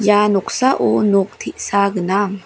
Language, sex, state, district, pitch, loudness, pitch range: Garo, female, Meghalaya, West Garo Hills, 200 Hz, -17 LUFS, 195-210 Hz